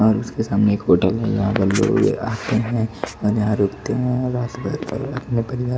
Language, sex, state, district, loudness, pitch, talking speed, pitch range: Hindi, male, Odisha, Malkangiri, -20 LUFS, 110 Hz, 175 wpm, 105-120 Hz